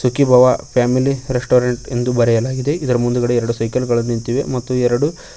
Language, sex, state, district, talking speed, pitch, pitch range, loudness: Kannada, male, Karnataka, Koppal, 145 wpm, 125 Hz, 120-130 Hz, -16 LUFS